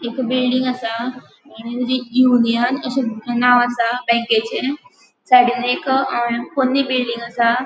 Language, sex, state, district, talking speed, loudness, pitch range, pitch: Konkani, female, Goa, North and South Goa, 110 wpm, -18 LUFS, 235-255 Hz, 245 Hz